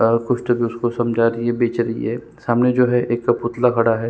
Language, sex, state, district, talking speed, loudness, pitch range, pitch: Hindi, male, Chhattisgarh, Sukma, 235 wpm, -19 LUFS, 115-120 Hz, 120 Hz